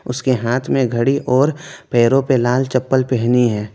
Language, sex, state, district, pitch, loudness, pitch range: Hindi, male, West Bengal, Alipurduar, 125 Hz, -16 LUFS, 120-135 Hz